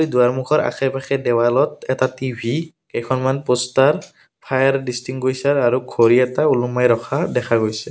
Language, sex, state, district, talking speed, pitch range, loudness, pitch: Assamese, male, Assam, Kamrup Metropolitan, 135 wpm, 120-135 Hz, -18 LUFS, 130 Hz